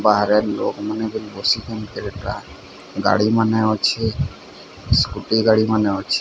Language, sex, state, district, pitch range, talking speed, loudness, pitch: Odia, male, Odisha, Sambalpur, 100-110 Hz, 85 wpm, -20 LUFS, 105 Hz